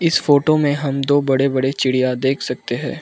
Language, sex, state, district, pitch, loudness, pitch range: Hindi, male, Arunachal Pradesh, Lower Dibang Valley, 140 Hz, -17 LUFS, 135-145 Hz